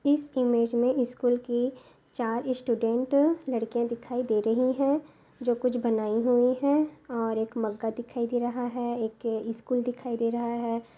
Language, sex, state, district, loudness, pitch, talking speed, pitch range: Hindi, male, Maharashtra, Solapur, -28 LUFS, 240 Hz, 165 wpm, 230-255 Hz